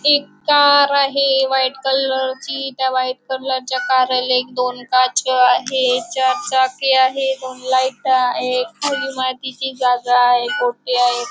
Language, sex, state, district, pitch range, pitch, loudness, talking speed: Marathi, female, Maharashtra, Chandrapur, 255-270 Hz, 260 Hz, -17 LUFS, 135 wpm